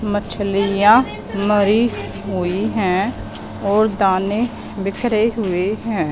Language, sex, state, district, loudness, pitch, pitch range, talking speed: Hindi, female, Punjab, Fazilka, -18 LUFS, 205 Hz, 195-220 Hz, 90 wpm